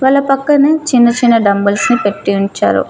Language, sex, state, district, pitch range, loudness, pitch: Telugu, female, Telangana, Mahabubabad, 205-275 Hz, -12 LUFS, 240 Hz